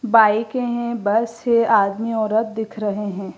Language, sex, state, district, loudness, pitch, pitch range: Hindi, female, Gujarat, Gandhinagar, -19 LUFS, 225 Hz, 210-235 Hz